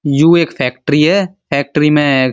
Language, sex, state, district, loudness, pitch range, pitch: Hindi, male, Uttar Pradesh, Muzaffarnagar, -13 LUFS, 140-165 Hz, 150 Hz